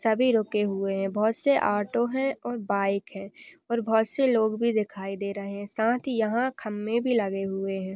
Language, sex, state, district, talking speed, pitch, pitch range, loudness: Hindi, female, Bihar, Kishanganj, 210 wpm, 220 Hz, 200-240 Hz, -27 LUFS